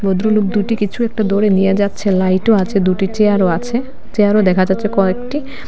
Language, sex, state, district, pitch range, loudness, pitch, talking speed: Bengali, female, Assam, Hailakandi, 190-215 Hz, -15 LUFS, 205 Hz, 170 wpm